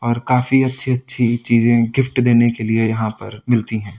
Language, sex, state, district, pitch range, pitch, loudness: Hindi, male, Delhi, New Delhi, 115-125 Hz, 120 Hz, -16 LUFS